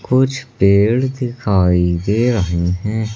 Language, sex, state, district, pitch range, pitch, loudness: Hindi, male, Madhya Pradesh, Katni, 95-125 Hz, 110 Hz, -16 LUFS